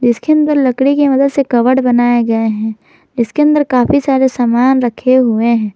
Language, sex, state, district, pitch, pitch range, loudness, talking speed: Hindi, female, Jharkhand, Garhwa, 255 Hz, 235-275 Hz, -12 LUFS, 190 wpm